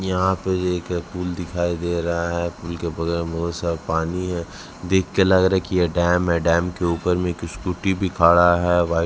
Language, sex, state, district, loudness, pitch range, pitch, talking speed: Hindi, male, Chhattisgarh, Raipur, -21 LUFS, 85-90 Hz, 85 Hz, 225 wpm